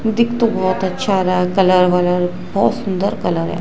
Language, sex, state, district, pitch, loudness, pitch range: Hindi, female, Gujarat, Gandhinagar, 185 Hz, -16 LUFS, 180-200 Hz